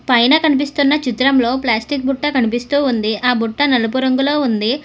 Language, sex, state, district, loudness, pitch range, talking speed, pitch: Telugu, female, Telangana, Hyderabad, -15 LUFS, 240-285 Hz, 150 wpm, 260 Hz